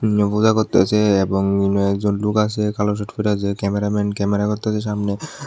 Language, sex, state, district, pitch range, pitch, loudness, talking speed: Bengali, male, Tripura, West Tripura, 100-105 Hz, 105 Hz, -19 LUFS, 145 wpm